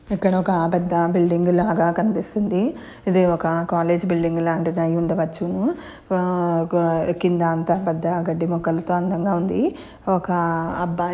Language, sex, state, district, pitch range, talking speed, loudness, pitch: Telugu, female, Andhra Pradesh, Anantapur, 170-185 Hz, 125 wpm, -21 LUFS, 175 Hz